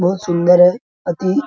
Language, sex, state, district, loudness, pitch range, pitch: Hindi, male, Bihar, Araria, -14 LUFS, 175-190 Hz, 180 Hz